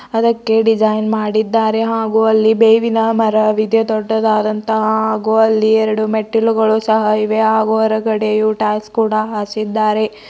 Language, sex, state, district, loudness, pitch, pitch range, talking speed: Kannada, female, Karnataka, Bidar, -14 LUFS, 220 Hz, 215-220 Hz, 110 wpm